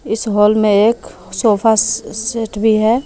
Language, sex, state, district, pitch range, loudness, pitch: Hindi, female, Jharkhand, Palamu, 215-225 Hz, -14 LUFS, 220 Hz